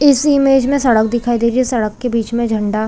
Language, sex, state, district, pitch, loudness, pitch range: Hindi, female, Chhattisgarh, Bilaspur, 235 Hz, -14 LUFS, 225-265 Hz